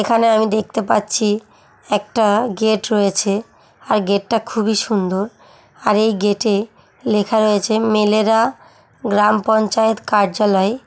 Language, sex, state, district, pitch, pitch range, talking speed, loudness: Bengali, female, West Bengal, Jhargram, 215 Hz, 210-220 Hz, 120 wpm, -17 LUFS